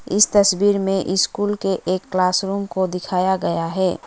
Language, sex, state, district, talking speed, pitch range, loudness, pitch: Hindi, female, West Bengal, Alipurduar, 160 wpm, 185-200 Hz, -19 LUFS, 190 Hz